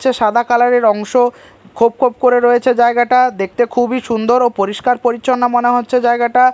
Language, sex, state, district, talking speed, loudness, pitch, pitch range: Bengali, male, Odisha, Malkangiri, 175 wpm, -13 LUFS, 245 Hz, 235-250 Hz